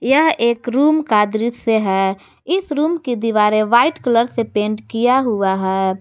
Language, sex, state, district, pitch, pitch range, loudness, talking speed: Hindi, female, Jharkhand, Garhwa, 230 Hz, 210-260 Hz, -17 LUFS, 170 wpm